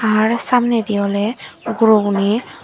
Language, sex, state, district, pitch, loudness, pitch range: Chakma, female, Tripura, Dhalai, 220 Hz, -16 LUFS, 205-230 Hz